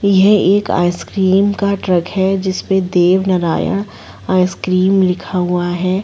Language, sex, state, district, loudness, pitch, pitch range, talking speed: Hindi, female, Uttar Pradesh, Jalaun, -14 LUFS, 190 Hz, 180-195 Hz, 130 wpm